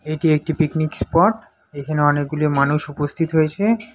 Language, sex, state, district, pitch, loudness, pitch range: Bengali, male, West Bengal, Alipurduar, 155 Hz, -19 LUFS, 145-165 Hz